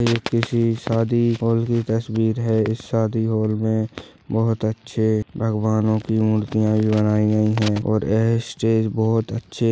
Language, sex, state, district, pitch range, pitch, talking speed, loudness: Hindi, male, Maharashtra, Nagpur, 110-115 Hz, 110 Hz, 140 wpm, -21 LUFS